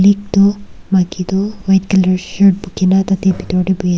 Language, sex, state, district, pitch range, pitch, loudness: Nagamese, female, Nagaland, Kohima, 185-195 Hz, 190 Hz, -14 LUFS